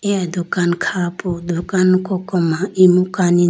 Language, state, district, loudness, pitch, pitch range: Idu Mishmi, Arunachal Pradesh, Lower Dibang Valley, -17 LUFS, 180 Hz, 175-185 Hz